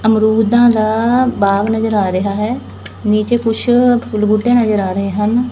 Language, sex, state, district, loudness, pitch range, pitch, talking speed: Punjabi, female, Punjab, Fazilka, -14 LUFS, 210-240 Hz, 220 Hz, 165 wpm